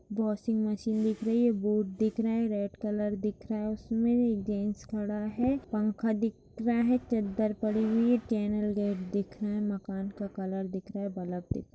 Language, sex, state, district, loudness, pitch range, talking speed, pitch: Hindi, female, Bihar, Lakhisarai, -31 LUFS, 205-225 Hz, 210 wpm, 215 Hz